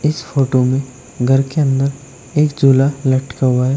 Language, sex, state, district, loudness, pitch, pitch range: Hindi, male, Uttar Pradesh, Shamli, -16 LUFS, 135 Hz, 130-140 Hz